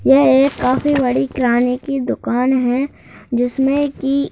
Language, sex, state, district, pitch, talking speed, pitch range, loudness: Hindi, male, Madhya Pradesh, Bhopal, 265 Hz, 150 wpm, 250-275 Hz, -16 LUFS